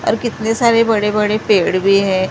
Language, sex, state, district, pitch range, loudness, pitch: Hindi, female, Maharashtra, Mumbai Suburban, 195-230 Hz, -14 LUFS, 215 Hz